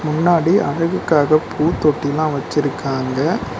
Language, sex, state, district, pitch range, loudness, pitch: Tamil, male, Tamil Nadu, Nilgiris, 145-165 Hz, -17 LUFS, 155 Hz